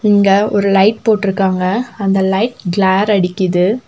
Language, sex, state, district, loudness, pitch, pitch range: Tamil, female, Tamil Nadu, Nilgiris, -14 LUFS, 195 Hz, 190-210 Hz